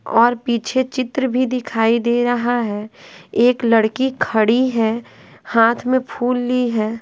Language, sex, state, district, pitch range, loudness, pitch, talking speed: Hindi, female, Bihar, Patna, 225-250 Hz, -18 LUFS, 240 Hz, 145 wpm